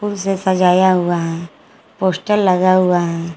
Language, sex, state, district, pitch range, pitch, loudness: Hindi, female, Jharkhand, Garhwa, 175-190 Hz, 185 Hz, -15 LUFS